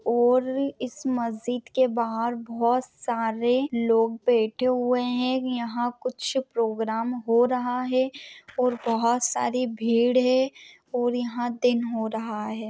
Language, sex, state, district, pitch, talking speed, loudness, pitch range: Hindi, female, Maharashtra, Pune, 240 Hz, 130 wpm, -25 LUFS, 230-255 Hz